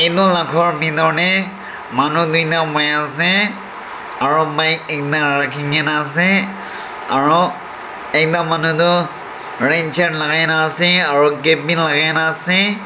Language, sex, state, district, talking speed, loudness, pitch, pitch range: Nagamese, male, Nagaland, Dimapur, 140 wpm, -15 LUFS, 160 Hz, 145-170 Hz